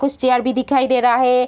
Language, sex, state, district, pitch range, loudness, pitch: Hindi, female, Bihar, Sitamarhi, 250-260 Hz, -16 LUFS, 255 Hz